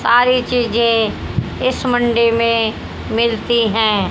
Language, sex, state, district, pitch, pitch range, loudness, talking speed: Hindi, female, Haryana, Jhajjar, 235 Hz, 225-245 Hz, -16 LUFS, 100 wpm